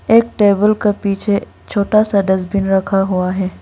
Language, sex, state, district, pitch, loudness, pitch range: Hindi, female, Arunachal Pradesh, Lower Dibang Valley, 200 Hz, -15 LUFS, 195-210 Hz